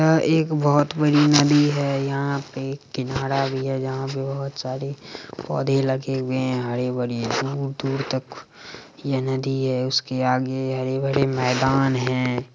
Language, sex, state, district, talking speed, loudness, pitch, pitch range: Hindi, male, Bihar, Madhepura, 150 wpm, -22 LUFS, 135 Hz, 130-140 Hz